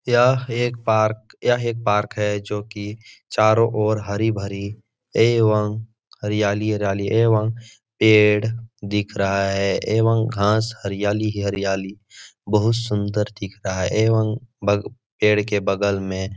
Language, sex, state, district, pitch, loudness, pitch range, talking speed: Hindi, male, Bihar, Jahanabad, 105 Hz, -21 LUFS, 100-115 Hz, 130 wpm